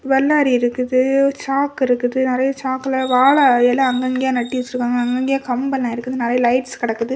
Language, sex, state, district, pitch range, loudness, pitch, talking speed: Tamil, female, Tamil Nadu, Kanyakumari, 245-270 Hz, -17 LUFS, 255 Hz, 135 wpm